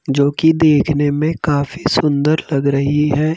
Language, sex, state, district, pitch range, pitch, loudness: Hindi, male, Madhya Pradesh, Bhopal, 145-155 Hz, 150 Hz, -15 LUFS